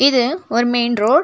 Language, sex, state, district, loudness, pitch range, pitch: Tamil, female, Tamil Nadu, Nilgiris, -17 LUFS, 235-265 Hz, 240 Hz